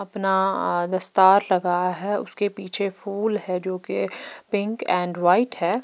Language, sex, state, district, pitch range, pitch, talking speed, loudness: Hindi, female, Himachal Pradesh, Shimla, 180-205 Hz, 190 Hz, 145 wpm, -21 LUFS